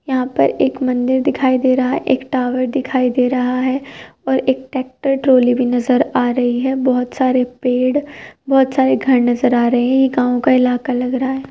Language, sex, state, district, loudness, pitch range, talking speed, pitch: Hindi, male, Uttar Pradesh, Jyotiba Phule Nagar, -16 LUFS, 250-265 Hz, 210 wpm, 255 Hz